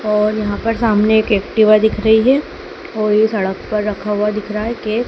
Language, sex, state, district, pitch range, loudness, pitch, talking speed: Hindi, male, Madhya Pradesh, Dhar, 210-220 Hz, -15 LUFS, 215 Hz, 235 wpm